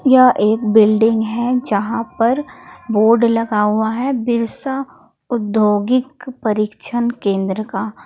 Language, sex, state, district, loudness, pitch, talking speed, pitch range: Hindi, female, Jharkhand, Palamu, -16 LUFS, 230 Hz, 110 wpm, 215-250 Hz